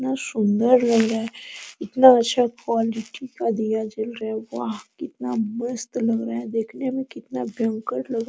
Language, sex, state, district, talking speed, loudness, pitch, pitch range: Hindi, female, Bihar, Araria, 180 wpm, -23 LUFS, 230 Hz, 220-245 Hz